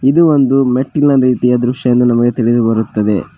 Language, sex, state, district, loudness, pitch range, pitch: Kannada, male, Karnataka, Koppal, -12 LUFS, 120-135 Hz, 125 Hz